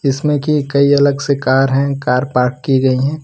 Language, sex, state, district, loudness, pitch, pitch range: Hindi, male, Gujarat, Valsad, -14 LUFS, 140 Hz, 130-145 Hz